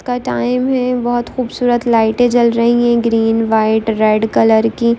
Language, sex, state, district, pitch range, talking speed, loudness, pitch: Hindi, female, Chhattisgarh, Kabirdham, 225-245 Hz, 180 wpm, -14 LUFS, 235 Hz